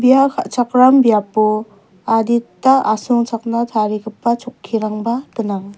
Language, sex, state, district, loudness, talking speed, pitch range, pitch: Garo, female, Meghalaya, West Garo Hills, -16 LUFS, 85 wpm, 215-245 Hz, 230 Hz